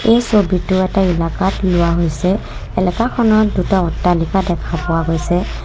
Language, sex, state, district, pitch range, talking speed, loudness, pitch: Assamese, female, Assam, Kamrup Metropolitan, 170-195 Hz, 125 wpm, -16 LUFS, 185 Hz